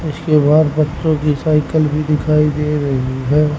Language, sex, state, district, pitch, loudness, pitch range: Hindi, male, Haryana, Rohtak, 150 Hz, -15 LUFS, 150-155 Hz